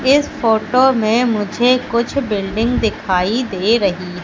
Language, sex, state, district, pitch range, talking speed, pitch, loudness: Hindi, female, Madhya Pradesh, Katni, 205-250 Hz, 125 wpm, 225 Hz, -16 LUFS